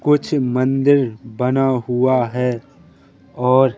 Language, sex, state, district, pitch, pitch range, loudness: Hindi, male, Madhya Pradesh, Katni, 130 Hz, 125-135 Hz, -18 LUFS